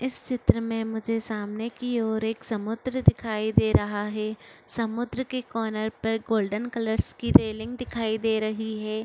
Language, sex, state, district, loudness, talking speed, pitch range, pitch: Chhattisgarhi, female, Chhattisgarh, Korba, -27 LUFS, 165 wpm, 220-235 Hz, 225 Hz